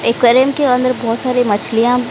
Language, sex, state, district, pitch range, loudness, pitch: Hindi, female, Odisha, Sambalpur, 235-255 Hz, -14 LUFS, 245 Hz